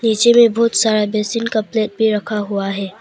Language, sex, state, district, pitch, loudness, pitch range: Hindi, female, Arunachal Pradesh, Papum Pare, 220 Hz, -16 LUFS, 210-230 Hz